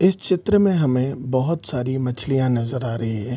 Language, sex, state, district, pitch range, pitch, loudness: Hindi, male, Bihar, Gopalganj, 125-165 Hz, 130 Hz, -21 LUFS